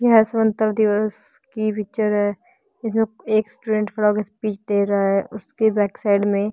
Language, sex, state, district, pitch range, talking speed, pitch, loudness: Hindi, female, Haryana, Jhajjar, 205-220 Hz, 175 wpm, 215 Hz, -21 LUFS